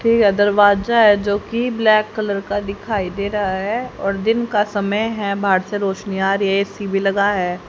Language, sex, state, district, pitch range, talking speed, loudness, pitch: Hindi, male, Haryana, Rohtak, 195-215 Hz, 210 wpm, -18 LUFS, 205 Hz